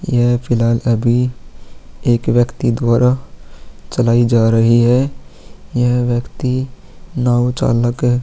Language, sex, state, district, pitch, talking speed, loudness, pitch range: Hindi, male, Chhattisgarh, Korba, 120 Hz, 100 wpm, -15 LUFS, 115-125 Hz